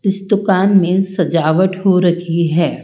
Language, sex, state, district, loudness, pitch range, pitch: Hindi, female, Rajasthan, Jaipur, -14 LUFS, 170-195 Hz, 185 Hz